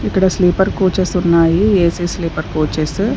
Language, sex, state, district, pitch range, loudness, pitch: Telugu, female, Andhra Pradesh, Sri Satya Sai, 170-190 Hz, -15 LUFS, 180 Hz